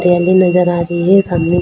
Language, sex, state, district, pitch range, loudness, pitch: Hindi, female, Jharkhand, Sahebganj, 175-180 Hz, -12 LUFS, 175 Hz